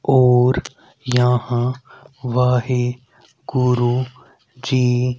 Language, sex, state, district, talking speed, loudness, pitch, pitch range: Hindi, male, Haryana, Rohtak, 60 wpm, -18 LUFS, 125 Hz, 125-130 Hz